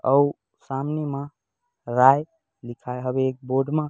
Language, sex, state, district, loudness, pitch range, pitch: Chhattisgarhi, male, Chhattisgarh, Raigarh, -23 LUFS, 130-150 Hz, 135 Hz